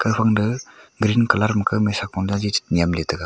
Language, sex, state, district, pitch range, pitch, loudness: Wancho, male, Arunachal Pradesh, Longding, 100-110 Hz, 105 Hz, -20 LUFS